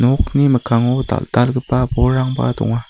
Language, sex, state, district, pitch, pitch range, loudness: Garo, male, Meghalaya, West Garo Hills, 125 Hz, 120-130 Hz, -16 LUFS